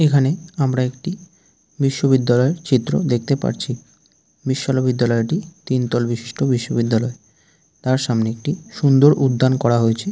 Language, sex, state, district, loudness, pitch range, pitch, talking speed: Bengali, male, West Bengal, Jalpaiguri, -19 LUFS, 120-145 Hz, 130 Hz, 105 wpm